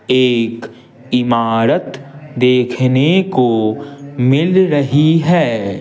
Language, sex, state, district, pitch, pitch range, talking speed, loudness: Hindi, male, Bihar, Patna, 130 Hz, 120-145 Hz, 70 wpm, -14 LUFS